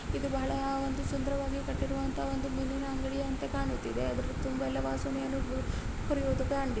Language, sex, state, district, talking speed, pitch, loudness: Kannada, female, Karnataka, Mysore, 140 wpm, 265 Hz, -34 LUFS